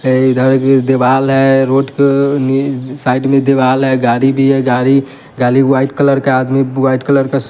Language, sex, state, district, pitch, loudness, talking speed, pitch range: Hindi, male, Bihar, West Champaran, 135 Hz, -12 LUFS, 190 wpm, 130-135 Hz